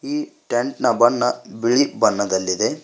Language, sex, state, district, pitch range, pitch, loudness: Kannada, male, Karnataka, Koppal, 115-155 Hz, 120 Hz, -19 LUFS